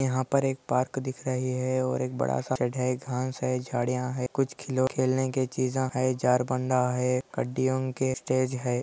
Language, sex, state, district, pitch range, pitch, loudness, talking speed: Hindi, male, Andhra Pradesh, Anantapur, 125-130 Hz, 130 Hz, -28 LUFS, 185 wpm